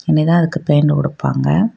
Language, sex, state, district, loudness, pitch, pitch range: Tamil, female, Tamil Nadu, Kanyakumari, -15 LUFS, 155 Hz, 145-170 Hz